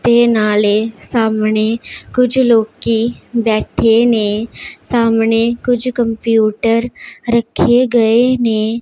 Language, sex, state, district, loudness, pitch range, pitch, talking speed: Hindi, female, Punjab, Pathankot, -14 LUFS, 220-240 Hz, 230 Hz, 95 wpm